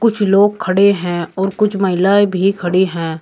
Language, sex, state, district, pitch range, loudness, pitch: Hindi, male, Uttar Pradesh, Shamli, 180-200 Hz, -14 LUFS, 195 Hz